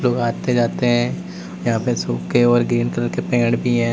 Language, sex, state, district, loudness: Hindi, male, Uttar Pradesh, Lalitpur, -19 LUFS